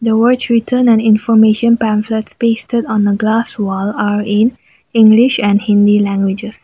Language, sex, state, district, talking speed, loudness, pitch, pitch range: English, female, Nagaland, Kohima, 125 wpm, -12 LUFS, 220 Hz, 205-230 Hz